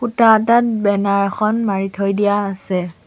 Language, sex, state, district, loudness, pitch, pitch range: Assamese, female, Assam, Sonitpur, -16 LUFS, 205 Hz, 195-220 Hz